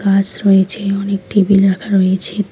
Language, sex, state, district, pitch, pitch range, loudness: Bengali, female, West Bengal, Alipurduar, 195 Hz, 190-200 Hz, -14 LUFS